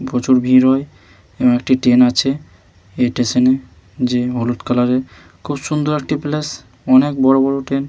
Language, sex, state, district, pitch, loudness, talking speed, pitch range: Bengali, male, West Bengal, Malda, 130 Hz, -16 LUFS, 165 wpm, 125-135 Hz